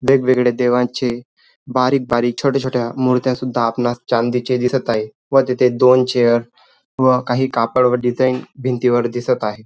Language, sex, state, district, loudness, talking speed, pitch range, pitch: Marathi, male, Maharashtra, Dhule, -17 LUFS, 145 wpm, 120-130 Hz, 125 Hz